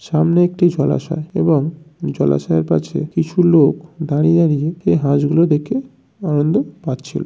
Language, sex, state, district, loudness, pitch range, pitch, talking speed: Bengali, male, West Bengal, North 24 Parganas, -17 LUFS, 145-170 Hz, 155 Hz, 125 wpm